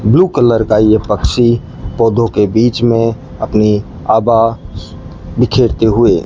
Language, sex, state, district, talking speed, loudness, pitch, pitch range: Hindi, male, Rajasthan, Bikaner, 135 wpm, -12 LUFS, 110 Hz, 105-115 Hz